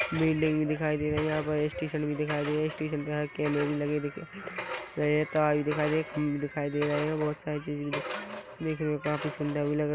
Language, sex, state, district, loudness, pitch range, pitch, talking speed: Hindi, male, Chhattisgarh, Korba, -30 LUFS, 150-155 Hz, 150 Hz, 240 wpm